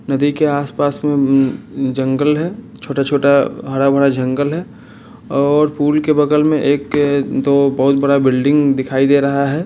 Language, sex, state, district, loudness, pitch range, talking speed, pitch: Hindi, male, Bihar, Sitamarhi, -15 LUFS, 140-150 Hz, 155 wpm, 140 Hz